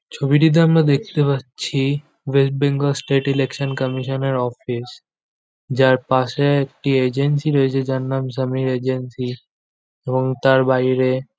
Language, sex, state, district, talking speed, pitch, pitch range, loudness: Bengali, male, West Bengal, Jhargram, 115 wpm, 135 Hz, 130-140 Hz, -19 LUFS